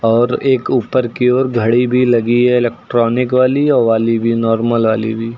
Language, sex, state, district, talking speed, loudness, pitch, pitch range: Hindi, male, Uttar Pradesh, Lucknow, 190 wpm, -14 LUFS, 120 Hz, 115-125 Hz